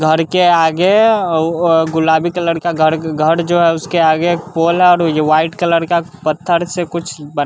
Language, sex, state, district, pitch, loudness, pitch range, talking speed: Hindi, male, Bihar, West Champaran, 165 Hz, -13 LUFS, 160-175 Hz, 210 wpm